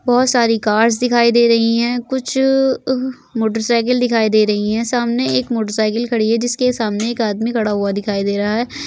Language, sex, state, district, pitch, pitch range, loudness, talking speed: Hindi, female, Uttar Pradesh, Jyotiba Phule Nagar, 230 Hz, 220-245 Hz, -16 LUFS, 195 wpm